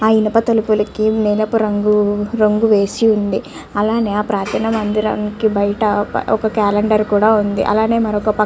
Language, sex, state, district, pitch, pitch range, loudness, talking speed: Telugu, female, Andhra Pradesh, Chittoor, 215 Hz, 205-220 Hz, -16 LUFS, 140 wpm